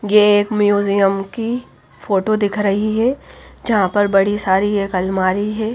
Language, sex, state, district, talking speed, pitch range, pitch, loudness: Hindi, female, Bihar, Patna, 155 wpm, 195-215 Hz, 205 Hz, -17 LUFS